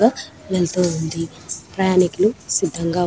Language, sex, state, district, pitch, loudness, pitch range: Telugu, female, Telangana, Nalgonda, 180 Hz, -20 LUFS, 170-190 Hz